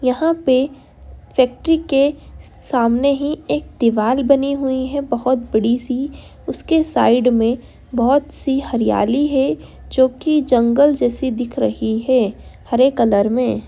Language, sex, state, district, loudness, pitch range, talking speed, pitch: Hindi, female, Bihar, Darbhanga, -17 LUFS, 240-280 Hz, 135 wpm, 260 Hz